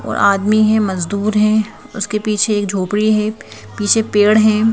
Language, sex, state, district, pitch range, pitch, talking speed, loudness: Hindi, female, Madhya Pradesh, Bhopal, 200-215 Hz, 210 Hz, 165 wpm, -15 LUFS